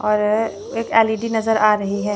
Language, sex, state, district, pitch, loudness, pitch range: Hindi, female, Chandigarh, Chandigarh, 215 Hz, -18 LUFS, 210-225 Hz